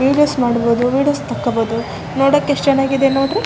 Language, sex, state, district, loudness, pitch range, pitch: Kannada, male, Karnataka, Raichur, -16 LUFS, 240-285 Hz, 270 Hz